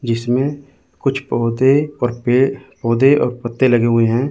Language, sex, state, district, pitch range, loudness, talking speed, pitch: Hindi, male, Chandigarh, Chandigarh, 120-135 Hz, -16 LUFS, 155 wpm, 125 Hz